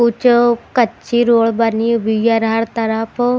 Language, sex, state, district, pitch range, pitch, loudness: Hindi, female, Bihar, West Champaran, 225-240 Hz, 230 Hz, -15 LUFS